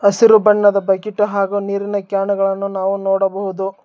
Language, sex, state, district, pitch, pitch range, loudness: Kannada, male, Karnataka, Bangalore, 200 Hz, 195-205 Hz, -16 LUFS